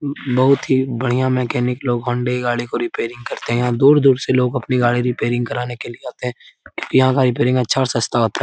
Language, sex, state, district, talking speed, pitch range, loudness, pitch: Hindi, male, Bihar, Lakhisarai, 240 wpm, 120-130 Hz, -18 LUFS, 125 Hz